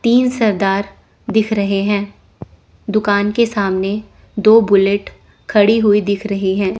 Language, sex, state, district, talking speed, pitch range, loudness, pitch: Hindi, female, Chandigarh, Chandigarh, 130 wpm, 200-220 Hz, -15 LUFS, 205 Hz